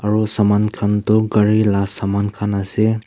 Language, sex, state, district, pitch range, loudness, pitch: Nagamese, male, Nagaland, Kohima, 100-110 Hz, -17 LUFS, 105 Hz